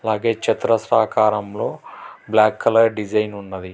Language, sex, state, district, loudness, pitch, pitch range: Telugu, male, Telangana, Hyderabad, -19 LUFS, 110 Hz, 105-115 Hz